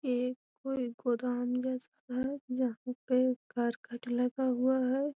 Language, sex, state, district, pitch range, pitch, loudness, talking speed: Magahi, female, Bihar, Gaya, 245-260 Hz, 250 Hz, -33 LUFS, 105 wpm